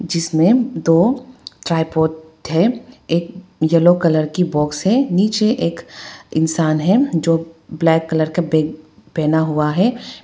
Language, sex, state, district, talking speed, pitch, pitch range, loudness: Hindi, female, Arunachal Pradesh, Papum Pare, 130 wpm, 165 Hz, 160-195 Hz, -17 LUFS